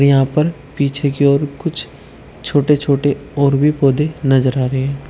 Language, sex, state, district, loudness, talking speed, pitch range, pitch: Hindi, male, Uttar Pradesh, Shamli, -16 LUFS, 175 wpm, 135-145 Hz, 140 Hz